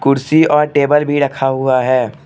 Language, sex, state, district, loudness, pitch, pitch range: Hindi, male, Arunachal Pradesh, Lower Dibang Valley, -13 LUFS, 140 Hz, 135-150 Hz